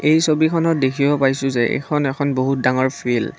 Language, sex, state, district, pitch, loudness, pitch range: Assamese, female, Assam, Kamrup Metropolitan, 135 Hz, -18 LUFS, 130-150 Hz